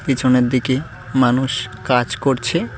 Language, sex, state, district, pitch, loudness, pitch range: Bengali, male, West Bengal, Cooch Behar, 125 Hz, -18 LUFS, 120-130 Hz